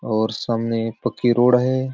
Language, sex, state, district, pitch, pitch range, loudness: Sadri, male, Chhattisgarh, Jashpur, 120 Hz, 115-125 Hz, -20 LUFS